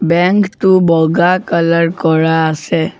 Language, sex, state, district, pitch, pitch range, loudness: Assamese, male, Assam, Sonitpur, 170 Hz, 160-185 Hz, -12 LUFS